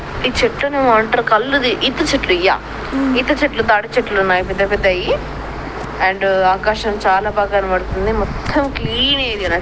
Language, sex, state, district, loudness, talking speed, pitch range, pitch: Telugu, female, Telangana, Nalgonda, -16 LUFS, 135 wpm, 190-255 Hz, 215 Hz